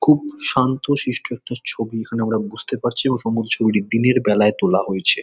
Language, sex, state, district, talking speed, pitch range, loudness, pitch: Bengali, male, West Bengal, Kolkata, 170 wpm, 110-130 Hz, -19 LUFS, 115 Hz